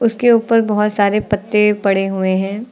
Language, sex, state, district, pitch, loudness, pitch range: Hindi, female, Uttar Pradesh, Lucknow, 210 Hz, -15 LUFS, 195-225 Hz